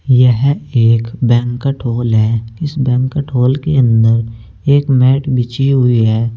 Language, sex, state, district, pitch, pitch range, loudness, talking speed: Hindi, male, Uttar Pradesh, Saharanpur, 125 Hz, 115-135 Hz, -13 LUFS, 140 wpm